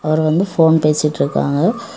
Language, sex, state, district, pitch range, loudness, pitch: Tamil, female, Tamil Nadu, Kanyakumari, 150-175 Hz, -15 LUFS, 155 Hz